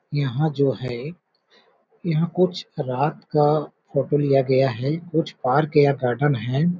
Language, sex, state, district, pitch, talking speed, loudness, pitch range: Hindi, male, Chhattisgarh, Balrampur, 145 Hz, 140 wpm, -22 LUFS, 135-160 Hz